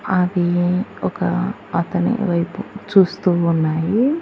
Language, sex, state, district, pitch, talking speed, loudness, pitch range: Telugu, female, Andhra Pradesh, Annamaya, 180 Hz, 85 wpm, -19 LUFS, 175-210 Hz